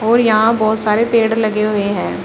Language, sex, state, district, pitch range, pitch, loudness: Hindi, female, Uttar Pradesh, Shamli, 210-225 Hz, 215 Hz, -14 LUFS